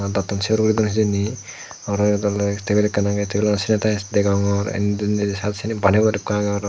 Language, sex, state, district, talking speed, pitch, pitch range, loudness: Chakma, male, Tripura, Dhalai, 145 wpm, 105 Hz, 100-105 Hz, -20 LUFS